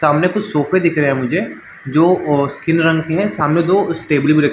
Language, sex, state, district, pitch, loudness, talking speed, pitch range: Hindi, male, Chhattisgarh, Balrampur, 160 Hz, -15 LUFS, 240 wpm, 145-170 Hz